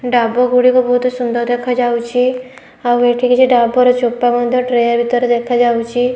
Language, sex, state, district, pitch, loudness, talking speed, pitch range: Odia, female, Odisha, Khordha, 245 Hz, -14 LUFS, 145 wpm, 240-250 Hz